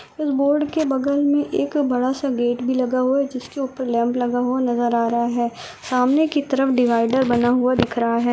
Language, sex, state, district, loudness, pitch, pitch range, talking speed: Hindi, female, Rajasthan, Churu, -20 LUFS, 255 Hz, 240-275 Hz, 215 wpm